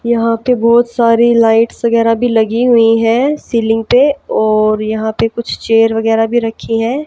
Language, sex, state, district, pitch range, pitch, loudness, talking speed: Hindi, female, Haryana, Jhajjar, 225-235 Hz, 230 Hz, -12 LUFS, 180 wpm